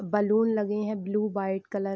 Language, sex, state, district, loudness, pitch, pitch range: Hindi, female, Bihar, Vaishali, -27 LUFS, 210 Hz, 195-215 Hz